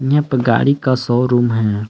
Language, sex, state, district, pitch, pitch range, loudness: Hindi, male, Jharkhand, Palamu, 125 Hz, 115-130 Hz, -15 LUFS